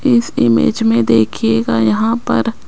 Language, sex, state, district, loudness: Hindi, female, Rajasthan, Jaipur, -14 LUFS